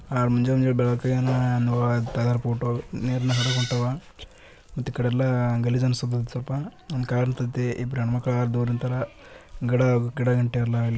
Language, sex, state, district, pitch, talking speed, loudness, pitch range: Kannada, male, Karnataka, Bijapur, 125 Hz, 120 wpm, -25 LUFS, 120-125 Hz